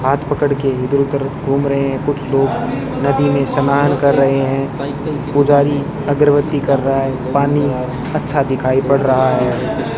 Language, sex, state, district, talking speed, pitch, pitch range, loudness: Hindi, male, Rajasthan, Bikaner, 160 wpm, 140 Hz, 135-145 Hz, -16 LUFS